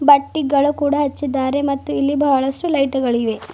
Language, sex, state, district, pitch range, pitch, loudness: Kannada, female, Karnataka, Bidar, 270-290 Hz, 280 Hz, -18 LUFS